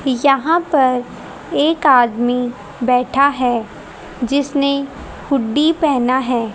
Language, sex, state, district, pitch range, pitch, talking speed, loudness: Hindi, female, Haryana, Rohtak, 245-280 Hz, 265 Hz, 90 wpm, -16 LUFS